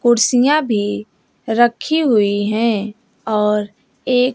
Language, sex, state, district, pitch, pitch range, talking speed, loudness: Hindi, female, Bihar, West Champaran, 225 Hz, 210-245 Hz, 95 wpm, -16 LUFS